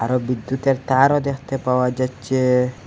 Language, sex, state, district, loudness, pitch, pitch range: Bengali, male, Assam, Hailakandi, -20 LUFS, 130 Hz, 125-135 Hz